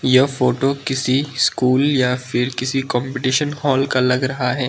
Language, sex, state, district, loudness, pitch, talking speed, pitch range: Hindi, male, Manipur, Imphal West, -18 LUFS, 130 Hz, 165 wpm, 125-135 Hz